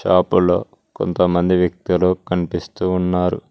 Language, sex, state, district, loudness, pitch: Telugu, male, Telangana, Mahabubabad, -18 LUFS, 90 Hz